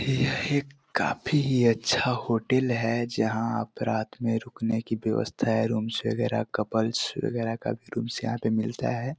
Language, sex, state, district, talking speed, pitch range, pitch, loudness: Hindi, male, Chhattisgarh, Korba, 155 wpm, 110-125 Hz, 115 Hz, -27 LUFS